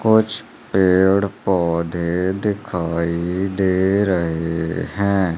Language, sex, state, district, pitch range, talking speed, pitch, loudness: Hindi, male, Madhya Pradesh, Umaria, 85-100 Hz, 80 wpm, 95 Hz, -19 LUFS